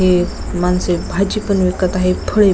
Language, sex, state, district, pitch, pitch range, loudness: Marathi, female, Maharashtra, Nagpur, 185 Hz, 180-195 Hz, -17 LUFS